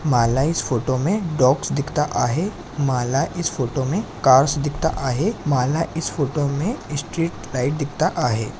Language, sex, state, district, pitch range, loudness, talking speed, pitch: Marathi, male, Maharashtra, Sindhudurg, 130-165 Hz, -21 LUFS, 155 wpm, 145 Hz